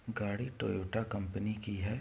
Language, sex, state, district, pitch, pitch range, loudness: Hindi, male, Chhattisgarh, Korba, 105 Hz, 100-110 Hz, -37 LUFS